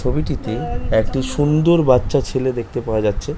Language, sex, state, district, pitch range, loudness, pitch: Bengali, male, West Bengal, North 24 Parganas, 110-145 Hz, -18 LUFS, 130 Hz